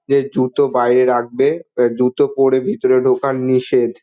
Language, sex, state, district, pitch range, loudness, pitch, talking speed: Bengali, male, West Bengal, Dakshin Dinajpur, 125-135 Hz, -16 LUFS, 130 Hz, 165 wpm